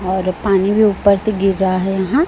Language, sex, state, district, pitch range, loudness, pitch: Hindi, female, Chhattisgarh, Raipur, 190-205 Hz, -15 LUFS, 195 Hz